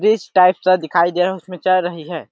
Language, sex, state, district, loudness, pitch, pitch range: Hindi, male, Chhattisgarh, Sarguja, -16 LUFS, 180 Hz, 175-185 Hz